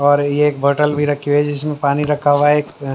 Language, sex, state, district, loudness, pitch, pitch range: Hindi, male, Haryana, Jhajjar, -16 LUFS, 145 Hz, 145-150 Hz